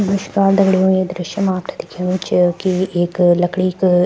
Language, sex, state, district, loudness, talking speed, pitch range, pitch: Garhwali, female, Uttarakhand, Tehri Garhwal, -16 LUFS, 190 wpm, 180-190 Hz, 185 Hz